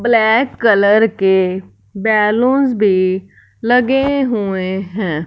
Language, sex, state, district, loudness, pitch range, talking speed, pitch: Hindi, female, Punjab, Fazilka, -14 LUFS, 190-240 Hz, 90 wpm, 210 Hz